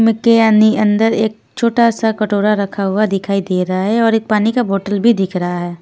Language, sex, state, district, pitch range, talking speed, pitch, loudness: Hindi, female, Punjab, Fazilka, 195-225 Hz, 245 wpm, 215 Hz, -14 LUFS